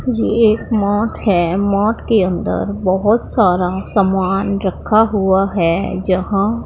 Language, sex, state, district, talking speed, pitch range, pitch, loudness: Hindi, female, Punjab, Pathankot, 125 wpm, 185-215 Hz, 200 Hz, -16 LUFS